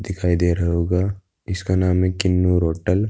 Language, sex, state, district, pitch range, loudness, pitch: Hindi, male, Uttar Pradesh, Budaun, 85-95 Hz, -20 LUFS, 90 Hz